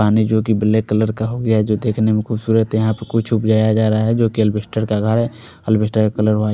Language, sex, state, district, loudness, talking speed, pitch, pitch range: Hindi, male, Odisha, Khordha, -17 LUFS, 255 wpm, 110 Hz, 105-110 Hz